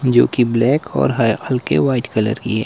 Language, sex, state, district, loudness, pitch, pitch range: Hindi, male, Himachal Pradesh, Shimla, -17 LUFS, 125 Hz, 115-135 Hz